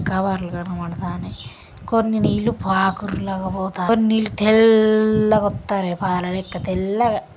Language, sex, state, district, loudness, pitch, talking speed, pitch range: Telugu, female, Andhra Pradesh, Srikakulam, -20 LUFS, 190 Hz, 115 wpm, 180-215 Hz